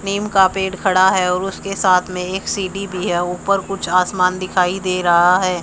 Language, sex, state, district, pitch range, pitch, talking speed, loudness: Hindi, male, Haryana, Charkhi Dadri, 180-195 Hz, 185 Hz, 215 wpm, -17 LUFS